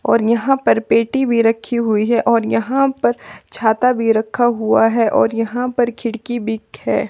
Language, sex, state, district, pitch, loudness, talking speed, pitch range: Hindi, female, Himachal Pradesh, Shimla, 230 Hz, -16 LUFS, 195 wpm, 225-245 Hz